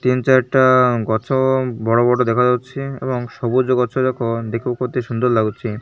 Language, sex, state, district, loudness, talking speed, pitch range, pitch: Odia, male, Odisha, Malkangiri, -17 LUFS, 145 wpm, 115-130 Hz, 125 Hz